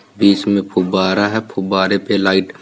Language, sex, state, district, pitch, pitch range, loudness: Hindi, male, Uttar Pradesh, Varanasi, 95 Hz, 95-100 Hz, -16 LUFS